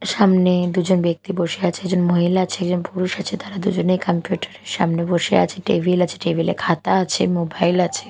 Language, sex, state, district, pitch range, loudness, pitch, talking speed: Bengali, female, Odisha, Malkangiri, 175-185 Hz, -19 LUFS, 180 Hz, 195 wpm